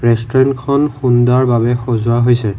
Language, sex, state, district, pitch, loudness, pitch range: Assamese, male, Assam, Kamrup Metropolitan, 120 Hz, -13 LUFS, 120-130 Hz